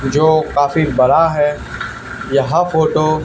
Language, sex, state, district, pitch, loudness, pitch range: Hindi, male, Haryana, Charkhi Dadri, 155 Hz, -14 LUFS, 145-160 Hz